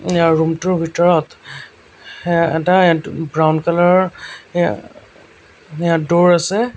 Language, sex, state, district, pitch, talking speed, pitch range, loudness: Assamese, male, Assam, Sonitpur, 170 Hz, 125 wpm, 160-175 Hz, -15 LUFS